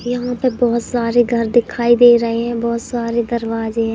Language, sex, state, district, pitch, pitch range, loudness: Hindi, female, Madhya Pradesh, Katni, 235 Hz, 230-240 Hz, -16 LUFS